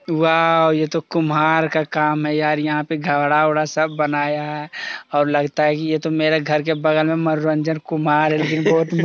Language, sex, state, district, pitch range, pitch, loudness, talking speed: Hindi, male, Bihar, Jamui, 150-160 Hz, 155 Hz, -18 LUFS, 155 wpm